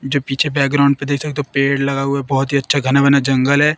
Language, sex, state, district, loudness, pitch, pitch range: Hindi, female, Madhya Pradesh, Katni, -16 LUFS, 140 Hz, 135-140 Hz